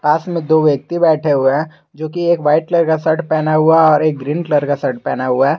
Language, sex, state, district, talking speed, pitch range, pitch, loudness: Hindi, male, Jharkhand, Garhwa, 280 wpm, 145-160 Hz, 155 Hz, -15 LUFS